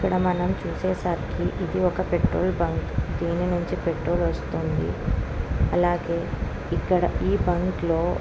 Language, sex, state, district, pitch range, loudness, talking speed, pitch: Telugu, female, Andhra Pradesh, Guntur, 170-180 Hz, -25 LUFS, 140 wpm, 175 Hz